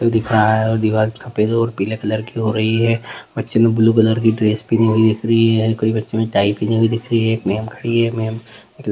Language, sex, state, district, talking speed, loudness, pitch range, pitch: Hindi, male, West Bengal, Kolkata, 180 wpm, -17 LUFS, 110-115 Hz, 110 Hz